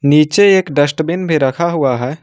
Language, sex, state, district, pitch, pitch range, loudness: Hindi, male, Jharkhand, Ranchi, 150 Hz, 140-170 Hz, -13 LUFS